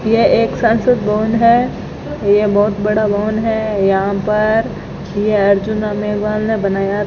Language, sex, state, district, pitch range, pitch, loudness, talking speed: Hindi, female, Rajasthan, Bikaner, 205-220 Hz, 210 Hz, -15 LUFS, 155 wpm